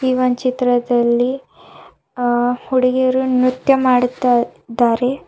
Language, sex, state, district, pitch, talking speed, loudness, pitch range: Kannada, female, Karnataka, Bidar, 250 Hz, 90 wpm, -16 LUFS, 245-255 Hz